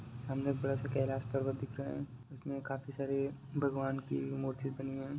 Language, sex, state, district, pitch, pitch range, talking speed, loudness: Hindi, male, Bihar, Jahanabad, 135 Hz, 135-140 Hz, 210 wpm, -38 LUFS